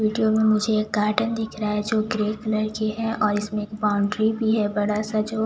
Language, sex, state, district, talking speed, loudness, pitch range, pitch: Hindi, female, Chhattisgarh, Jashpur, 230 wpm, -23 LUFS, 210-220 Hz, 215 Hz